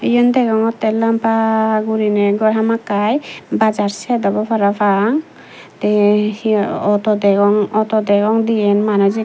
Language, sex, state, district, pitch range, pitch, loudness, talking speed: Chakma, female, Tripura, Dhalai, 205-225 Hz, 215 Hz, -15 LUFS, 130 wpm